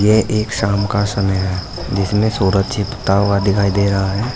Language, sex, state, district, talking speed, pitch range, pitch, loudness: Hindi, male, Uttar Pradesh, Saharanpur, 190 wpm, 95-105 Hz, 100 Hz, -17 LUFS